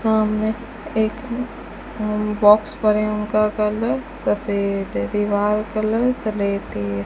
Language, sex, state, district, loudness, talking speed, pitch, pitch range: Hindi, female, Rajasthan, Bikaner, -21 LUFS, 120 wpm, 215 Hz, 210-220 Hz